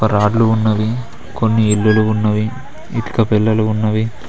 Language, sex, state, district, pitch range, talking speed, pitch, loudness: Telugu, male, Telangana, Mahabubabad, 105-110 Hz, 125 wpm, 110 Hz, -16 LUFS